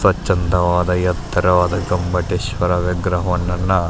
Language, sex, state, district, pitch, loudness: Kannada, male, Karnataka, Belgaum, 90 Hz, -18 LUFS